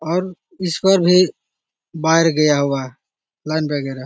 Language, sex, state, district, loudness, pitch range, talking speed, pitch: Magahi, male, Bihar, Jahanabad, -17 LUFS, 145-180 Hz, 135 wpm, 160 Hz